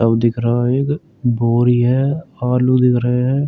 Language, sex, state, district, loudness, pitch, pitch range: Hindi, male, Uttar Pradesh, Jyotiba Phule Nagar, -16 LUFS, 125 Hz, 120-135 Hz